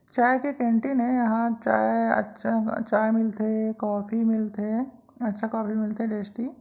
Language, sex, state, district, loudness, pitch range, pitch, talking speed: Chhattisgarhi, female, Chhattisgarh, Raigarh, -25 LUFS, 215-240 Hz, 225 Hz, 145 wpm